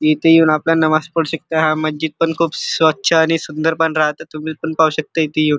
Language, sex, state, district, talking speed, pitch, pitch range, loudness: Marathi, male, Maharashtra, Chandrapur, 225 wpm, 160 Hz, 155-165 Hz, -16 LUFS